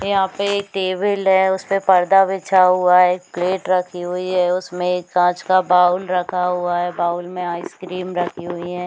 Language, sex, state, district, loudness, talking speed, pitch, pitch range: Hindi, female, Chhattisgarh, Bilaspur, -18 LUFS, 195 wpm, 180 Hz, 180-190 Hz